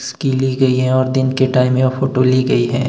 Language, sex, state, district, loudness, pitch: Hindi, male, Himachal Pradesh, Shimla, -15 LUFS, 130 Hz